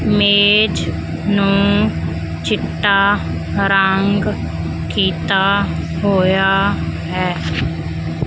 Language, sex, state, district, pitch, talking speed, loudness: Punjabi, female, Punjab, Fazilka, 195 Hz, 50 wpm, -16 LUFS